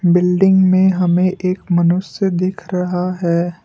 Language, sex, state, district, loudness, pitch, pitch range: Hindi, male, Assam, Kamrup Metropolitan, -15 LUFS, 180 Hz, 175-185 Hz